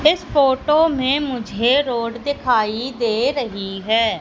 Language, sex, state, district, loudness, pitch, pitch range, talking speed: Hindi, female, Madhya Pradesh, Katni, -19 LUFS, 255 Hz, 225-285 Hz, 130 wpm